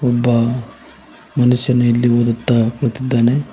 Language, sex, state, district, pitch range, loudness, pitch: Kannada, male, Karnataka, Koppal, 120-125 Hz, -16 LUFS, 120 Hz